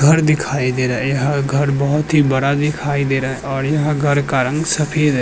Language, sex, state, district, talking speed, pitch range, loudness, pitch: Hindi, male, Uttar Pradesh, Jyotiba Phule Nagar, 240 wpm, 135-150 Hz, -17 LUFS, 145 Hz